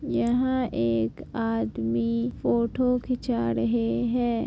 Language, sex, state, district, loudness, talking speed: Hindi, female, Uttar Pradesh, Jalaun, -26 LUFS, 95 wpm